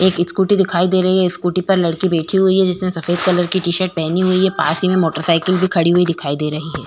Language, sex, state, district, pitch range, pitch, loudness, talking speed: Hindi, female, Goa, North and South Goa, 170-185 Hz, 180 Hz, -16 LUFS, 270 wpm